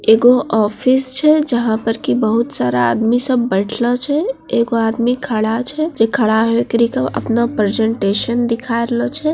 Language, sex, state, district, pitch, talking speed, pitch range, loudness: Maithili, female, Bihar, Bhagalpur, 235 Hz, 165 wpm, 220-250 Hz, -15 LUFS